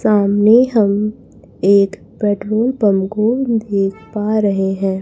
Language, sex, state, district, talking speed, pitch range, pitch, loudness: Hindi, female, Chhattisgarh, Raipur, 120 wpm, 200-220 Hz, 210 Hz, -15 LUFS